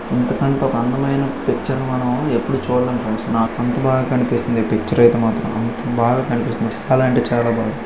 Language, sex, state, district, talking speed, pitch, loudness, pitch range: Telugu, male, Andhra Pradesh, Chittoor, 160 wpm, 120 Hz, -18 LUFS, 115-130 Hz